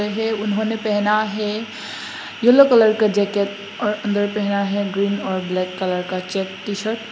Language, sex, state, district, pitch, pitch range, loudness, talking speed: Hindi, female, Assam, Hailakandi, 205 Hz, 200-215 Hz, -20 LUFS, 175 wpm